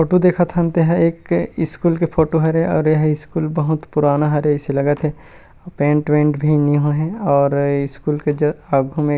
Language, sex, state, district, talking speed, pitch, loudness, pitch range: Chhattisgarhi, male, Chhattisgarh, Rajnandgaon, 210 wpm, 150 Hz, -17 LUFS, 145-160 Hz